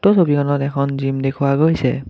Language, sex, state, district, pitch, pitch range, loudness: Assamese, male, Assam, Kamrup Metropolitan, 140 Hz, 135-150 Hz, -17 LUFS